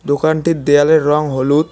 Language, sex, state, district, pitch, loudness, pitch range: Bengali, male, West Bengal, Cooch Behar, 150 Hz, -14 LUFS, 145-160 Hz